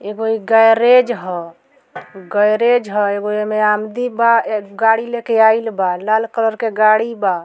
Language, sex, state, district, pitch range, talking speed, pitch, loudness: Bhojpuri, female, Bihar, Muzaffarpur, 210-230 Hz, 160 wpm, 220 Hz, -15 LUFS